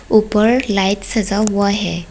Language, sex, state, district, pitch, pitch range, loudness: Hindi, female, Tripura, West Tripura, 205 Hz, 195-215 Hz, -16 LUFS